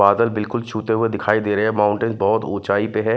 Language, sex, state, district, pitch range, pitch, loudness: Hindi, male, Himachal Pradesh, Shimla, 105-110 Hz, 110 Hz, -19 LUFS